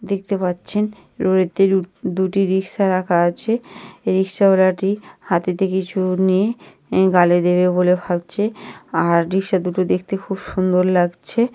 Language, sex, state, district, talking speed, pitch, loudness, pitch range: Bengali, female, West Bengal, Jhargram, 120 wpm, 190 Hz, -18 LUFS, 180-195 Hz